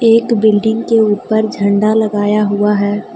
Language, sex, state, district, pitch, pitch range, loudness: Hindi, female, Jharkhand, Deoghar, 215 Hz, 205-220 Hz, -13 LUFS